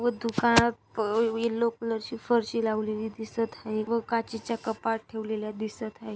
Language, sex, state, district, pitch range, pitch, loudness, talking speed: Marathi, female, Maharashtra, Dhule, 220-230 Hz, 225 Hz, -29 LUFS, 145 wpm